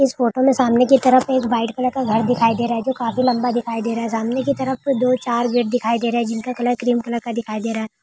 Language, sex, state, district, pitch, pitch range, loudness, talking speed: Hindi, female, Uttar Pradesh, Budaun, 240 Hz, 230-255 Hz, -19 LUFS, 315 wpm